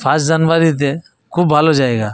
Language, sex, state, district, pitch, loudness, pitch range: Bengali, male, Jharkhand, Jamtara, 150 Hz, -14 LUFS, 135-160 Hz